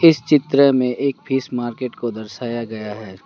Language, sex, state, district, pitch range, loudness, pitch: Hindi, male, West Bengal, Alipurduar, 115-140 Hz, -19 LUFS, 125 Hz